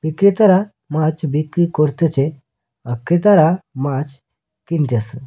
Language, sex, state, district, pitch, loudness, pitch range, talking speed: Bengali, male, West Bengal, Cooch Behar, 155 Hz, -17 LUFS, 135-170 Hz, 90 wpm